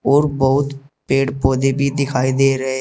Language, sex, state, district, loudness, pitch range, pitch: Hindi, male, Uttar Pradesh, Saharanpur, -17 LUFS, 135-140 Hz, 135 Hz